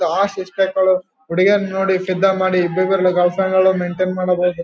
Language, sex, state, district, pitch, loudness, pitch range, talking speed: Kannada, male, Karnataka, Gulbarga, 185 Hz, -17 LUFS, 180-190 Hz, 140 wpm